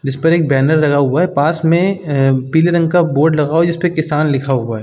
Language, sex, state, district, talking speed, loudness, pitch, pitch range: Hindi, male, Uttar Pradesh, Muzaffarnagar, 275 wpm, -14 LUFS, 155 Hz, 140-165 Hz